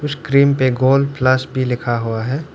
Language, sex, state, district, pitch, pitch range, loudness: Hindi, male, Arunachal Pradesh, Lower Dibang Valley, 130 Hz, 125-140 Hz, -16 LUFS